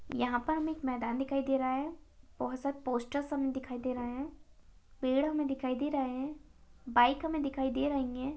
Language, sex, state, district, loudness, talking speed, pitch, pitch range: Hindi, female, Bihar, Saharsa, -34 LUFS, 210 wpm, 270 Hz, 255-285 Hz